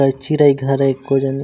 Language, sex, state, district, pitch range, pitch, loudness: Chhattisgarhi, male, Chhattisgarh, Raigarh, 135-140 Hz, 135 Hz, -16 LUFS